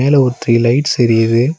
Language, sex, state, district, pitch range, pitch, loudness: Tamil, male, Tamil Nadu, Nilgiris, 115-140 Hz, 125 Hz, -13 LUFS